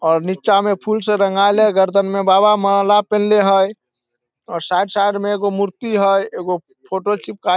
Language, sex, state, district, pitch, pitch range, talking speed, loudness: Maithili, male, Bihar, Samastipur, 200 Hz, 190-205 Hz, 190 wpm, -16 LUFS